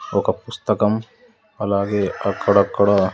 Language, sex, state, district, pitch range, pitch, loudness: Telugu, male, Andhra Pradesh, Sri Satya Sai, 100-105 Hz, 100 Hz, -20 LUFS